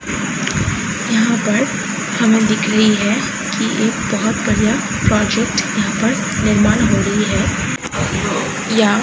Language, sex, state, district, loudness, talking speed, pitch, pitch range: Hindi, female, Uttar Pradesh, Varanasi, -16 LUFS, 125 wpm, 220 Hz, 210-225 Hz